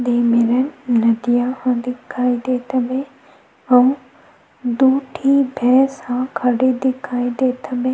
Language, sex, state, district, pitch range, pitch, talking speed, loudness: Chhattisgarhi, female, Chhattisgarh, Sukma, 245-265 Hz, 255 Hz, 120 wpm, -18 LUFS